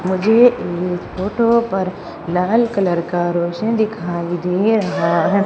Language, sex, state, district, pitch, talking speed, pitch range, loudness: Hindi, female, Madhya Pradesh, Umaria, 185 Hz, 130 wpm, 175-220 Hz, -17 LUFS